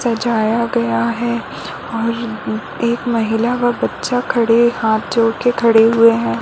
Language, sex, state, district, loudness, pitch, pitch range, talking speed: Hindi, female, Chhattisgarh, Balrampur, -16 LUFS, 230 Hz, 225-235 Hz, 160 wpm